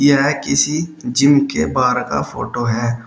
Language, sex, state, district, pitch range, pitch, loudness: Hindi, male, Uttar Pradesh, Shamli, 120-145 Hz, 140 Hz, -17 LUFS